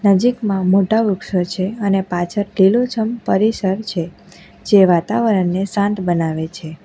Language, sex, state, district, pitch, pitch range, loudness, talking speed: Gujarati, female, Gujarat, Valsad, 195 Hz, 180-210 Hz, -17 LUFS, 125 wpm